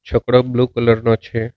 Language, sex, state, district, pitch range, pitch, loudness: Gujarati, male, Gujarat, Navsari, 115-125 Hz, 120 Hz, -16 LUFS